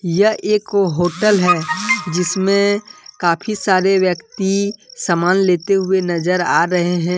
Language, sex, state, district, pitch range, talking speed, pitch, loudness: Hindi, male, Jharkhand, Deoghar, 175-205 Hz, 125 wpm, 190 Hz, -16 LUFS